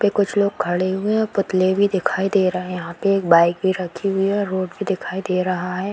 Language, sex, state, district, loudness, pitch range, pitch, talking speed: Hindi, female, Bihar, Darbhanga, -20 LUFS, 185-200 Hz, 190 Hz, 285 wpm